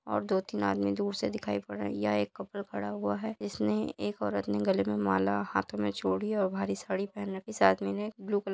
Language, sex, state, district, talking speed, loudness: Hindi, male, Bihar, Jahanabad, 260 wpm, -32 LUFS